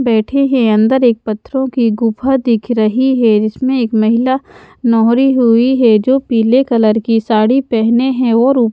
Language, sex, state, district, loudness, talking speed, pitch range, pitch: Hindi, female, Haryana, Charkhi Dadri, -12 LUFS, 165 wpm, 225-260 Hz, 235 Hz